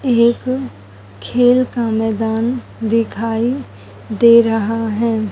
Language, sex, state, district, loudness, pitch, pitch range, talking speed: Hindi, female, Haryana, Charkhi Dadri, -16 LUFS, 230 Hz, 220-240 Hz, 90 wpm